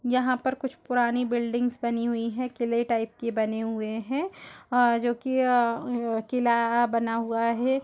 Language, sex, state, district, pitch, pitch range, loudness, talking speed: Hindi, female, Uttar Pradesh, Jalaun, 240 Hz, 230-250 Hz, -26 LUFS, 170 wpm